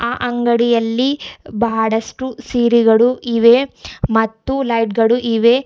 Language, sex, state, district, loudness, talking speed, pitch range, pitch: Kannada, female, Karnataka, Bidar, -15 LUFS, 95 wpm, 230-250 Hz, 235 Hz